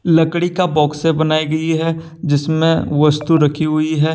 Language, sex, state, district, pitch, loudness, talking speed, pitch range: Hindi, male, Jharkhand, Deoghar, 160 Hz, -16 LUFS, 160 wpm, 155-165 Hz